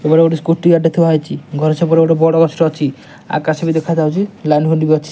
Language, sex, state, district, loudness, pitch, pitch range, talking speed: Odia, male, Odisha, Nuapada, -14 LUFS, 160 Hz, 155-165 Hz, 245 wpm